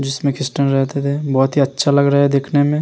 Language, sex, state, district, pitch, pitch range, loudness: Hindi, male, Bihar, Vaishali, 140 Hz, 135-140 Hz, -16 LUFS